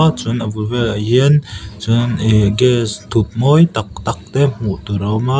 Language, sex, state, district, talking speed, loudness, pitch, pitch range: Mizo, male, Mizoram, Aizawl, 200 wpm, -15 LUFS, 115 Hz, 105-125 Hz